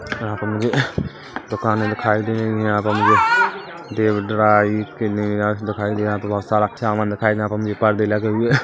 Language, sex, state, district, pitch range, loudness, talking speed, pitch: Hindi, male, Chhattisgarh, Kabirdham, 105-110 Hz, -19 LUFS, 200 wpm, 105 Hz